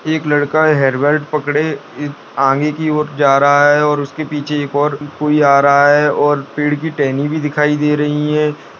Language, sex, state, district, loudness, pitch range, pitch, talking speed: Hindi, male, Bihar, Darbhanga, -14 LUFS, 145-150 Hz, 150 Hz, 205 wpm